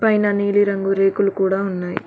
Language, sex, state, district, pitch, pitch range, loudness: Telugu, female, Telangana, Mahabubabad, 195 Hz, 195-205 Hz, -18 LUFS